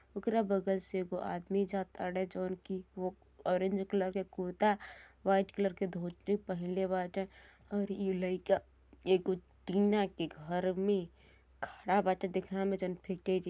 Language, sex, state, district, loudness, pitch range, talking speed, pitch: Bhojpuri, male, Uttar Pradesh, Gorakhpur, -35 LUFS, 185-195 Hz, 145 wpm, 190 Hz